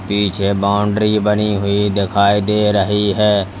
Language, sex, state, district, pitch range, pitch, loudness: Hindi, male, Uttar Pradesh, Lalitpur, 100-105 Hz, 100 Hz, -15 LUFS